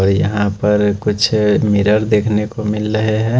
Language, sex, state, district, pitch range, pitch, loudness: Hindi, male, Chhattisgarh, Raipur, 105-110 Hz, 105 Hz, -15 LUFS